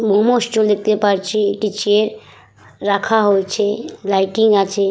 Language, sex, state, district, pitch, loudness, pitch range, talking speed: Bengali, female, West Bengal, Purulia, 205 Hz, -16 LUFS, 195-215 Hz, 120 wpm